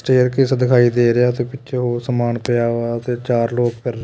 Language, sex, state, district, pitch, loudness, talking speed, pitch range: Punjabi, male, Punjab, Kapurthala, 120 Hz, -17 LUFS, 205 wpm, 120-125 Hz